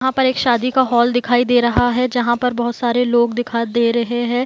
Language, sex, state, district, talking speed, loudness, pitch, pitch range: Hindi, female, Bihar, Gopalganj, 270 wpm, -16 LUFS, 240 Hz, 235-250 Hz